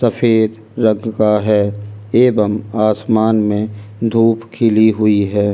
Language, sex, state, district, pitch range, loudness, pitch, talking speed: Hindi, male, Delhi, New Delhi, 105-115 Hz, -15 LUFS, 110 Hz, 120 wpm